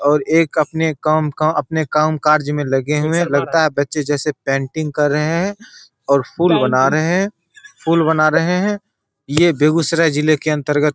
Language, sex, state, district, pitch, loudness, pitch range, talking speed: Hindi, male, Bihar, Begusarai, 155 Hz, -16 LUFS, 145-165 Hz, 185 wpm